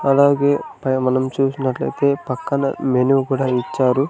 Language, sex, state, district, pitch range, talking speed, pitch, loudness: Telugu, male, Andhra Pradesh, Sri Satya Sai, 130-140 Hz, 115 wpm, 135 Hz, -19 LUFS